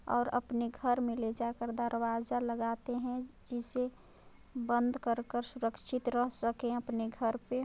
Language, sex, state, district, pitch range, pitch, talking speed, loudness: Hindi, female, Chhattisgarh, Balrampur, 235-250 Hz, 240 Hz, 155 wpm, -35 LUFS